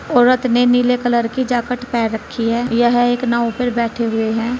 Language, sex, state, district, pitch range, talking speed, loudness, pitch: Hindi, female, Uttar Pradesh, Saharanpur, 235-245 Hz, 210 wpm, -17 LUFS, 240 Hz